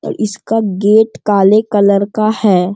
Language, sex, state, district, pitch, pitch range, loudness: Hindi, male, Bihar, Sitamarhi, 205 Hz, 200-215 Hz, -12 LUFS